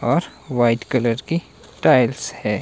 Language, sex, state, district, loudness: Hindi, male, Himachal Pradesh, Shimla, -20 LUFS